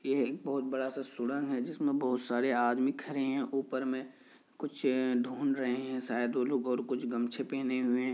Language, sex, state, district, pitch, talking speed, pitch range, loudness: Hindi, male, Bihar, Kishanganj, 130 Hz, 200 wpm, 125-135 Hz, -33 LUFS